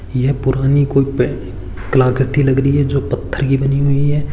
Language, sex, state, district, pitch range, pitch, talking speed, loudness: Hindi, male, Rajasthan, Churu, 125-140 Hz, 135 Hz, 165 wpm, -15 LUFS